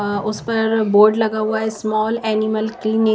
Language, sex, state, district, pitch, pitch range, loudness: Hindi, female, Himachal Pradesh, Shimla, 220 Hz, 215-220 Hz, -18 LUFS